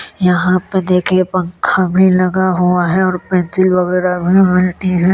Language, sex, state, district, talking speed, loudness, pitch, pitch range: Hindi, male, Uttar Pradesh, Jyotiba Phule Nagar, 165 wpm, -13 LUFS, 185 Hz, 180-185 Hz